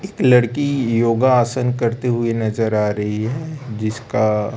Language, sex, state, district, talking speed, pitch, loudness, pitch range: Hindi, male, Chhattisgarh, Raipur, 145 wpm, 115 Hz, -18 LUFS, 110-125 Hz